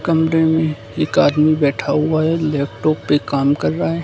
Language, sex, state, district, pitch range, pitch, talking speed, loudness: Hindi, male, Haryana, Charkhi Dadri, 140-160 Hz, 150 Hz, 195 wpm, -17 LUFS